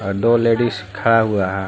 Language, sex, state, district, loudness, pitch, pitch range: Hindi, male, Jharkhand, Garhwa, -17 LUFS, 105 Hz, 100-115 Hz